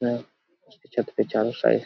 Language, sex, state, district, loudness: Hindi, male, Jharkhand, Sahebganj, -26 LUFS